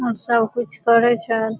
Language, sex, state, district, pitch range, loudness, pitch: Maithili, female, Bihar, Supaul, 225-240 Hz, -19 LUFS, 230 Hz